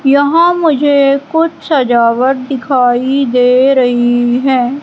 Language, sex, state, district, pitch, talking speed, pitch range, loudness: Hindi, female, Madhya Pradesh, Katni, 270 Hz, 100 wpm, 245-285 Hz, -11 LUFS